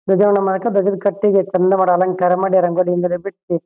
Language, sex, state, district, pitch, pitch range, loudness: Kannada, male, Karnataka, Shimoga, 190 Hz, 180-200 Hz, -16 LUFS